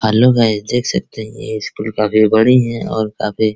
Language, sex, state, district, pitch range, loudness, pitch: Hindi, male, Bihar, Araria, 110-120 Hz, -15 LUFS, 110 Hz